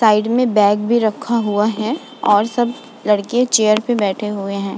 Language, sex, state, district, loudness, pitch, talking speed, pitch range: Hindi, female, Uttar Pradesh, Budaun, -17 LUFS, 220 Hz, 190 wpm, 210-240 Hz